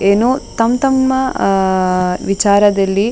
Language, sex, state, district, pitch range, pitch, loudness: Kannada, female, Karnataka, Dakshina Kannada, 195-250 Hz, 205 Hz, -14 LUFS